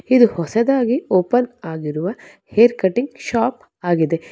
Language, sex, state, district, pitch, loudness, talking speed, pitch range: Kannada, female, Karnataka, Bangalore, 230 Hz, -18 LUFS, 110 wpm, 175-245 Hz